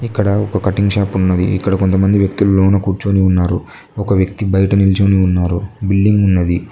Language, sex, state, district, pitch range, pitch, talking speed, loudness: Telugu, male, Telangana, Mahabubabad, 95-100 Hz, 95 Hz, 170 wpm, -14 LUFS